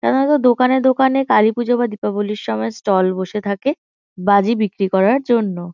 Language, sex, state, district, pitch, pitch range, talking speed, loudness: Bengali, female, West Bengal, Kolkata, 210 Hz, 195-255 Hz, 145 wpm, -17 LUFS